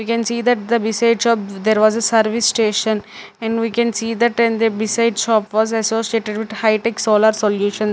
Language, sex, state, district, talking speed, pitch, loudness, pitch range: English, female, Punjab, Fazilka, 210 wpm, 225 Hz, -17 LUFS, 215-230 Hz